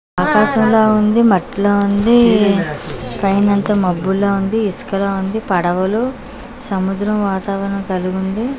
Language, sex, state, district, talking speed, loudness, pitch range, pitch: Telugu, female, Andhra Pradesh, Manyam, 90 wpm, -15 LUFS, 190-220 Hz, 200 Hz